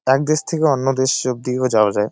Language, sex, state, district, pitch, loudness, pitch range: Bengali, male, West Bengal, Jalpaiguri, 130 Hz, -18 LUFS, 125-140 Hz